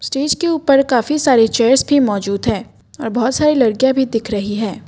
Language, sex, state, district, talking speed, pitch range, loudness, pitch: Hindi, female, Assam, Kamrup Metropolitan, 210 wpm, 225-285 Hz, -15 LUFS, 260 Hz